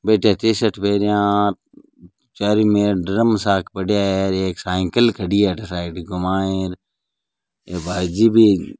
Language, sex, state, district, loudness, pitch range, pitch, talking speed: Marwari, male, Rajasthan, Nagaur, -18 LUFS, 95-105 Hz, 100 Hz, 165 wpm